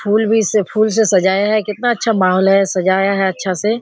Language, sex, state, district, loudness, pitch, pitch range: Hindi, female, Bihar, Kishanganj, -15 LUFS, 205 Hz, 190-220 Hz